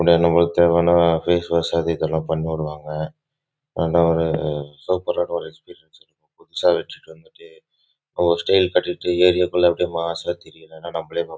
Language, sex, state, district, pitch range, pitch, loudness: Tamil, male, Karnataka, Chamarajanagar, 80-90 Hz, 85 Hz, -20 LUFS